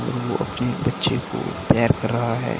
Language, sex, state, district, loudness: Hindi, male, Maharashtra, Gondia, -22 LUFS